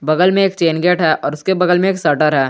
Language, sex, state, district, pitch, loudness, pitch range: Hindi, male, Jharkhand, Garhwa, 170 Hz, -14 LUFS, 155-185 Hz